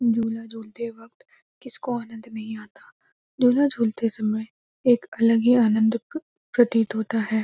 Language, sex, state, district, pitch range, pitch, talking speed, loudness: Hindi, female, Uttarakhand, Uttarkashi, 220-245 Hz, 230 Hz, 135 wpm, -23 LUFS